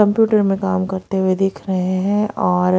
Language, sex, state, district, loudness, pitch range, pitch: Hindi, female, Haryana, Rohtak, -18 LUFS, 185-205 Hz, 190 Hz